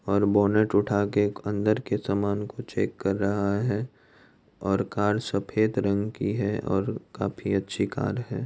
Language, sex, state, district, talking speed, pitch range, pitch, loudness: Hindi, male, Bihar, Madhepura, 165 wpm, 100-110 Hz, 100 Hz, -26 LUFS